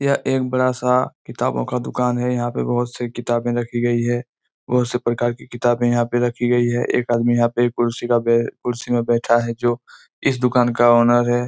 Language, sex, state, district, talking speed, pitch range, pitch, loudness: Hindi, male, Chhattisgarh, Korba, 220 wpm, 120-125 Hz, 120 Hz, -19 LUFS